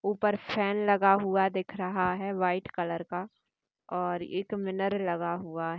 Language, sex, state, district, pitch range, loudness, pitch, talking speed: Hindi, female, Rajasthan, Nagaur, 180-200 Hz, -30 LUFS, 190 Hz, 165 wpm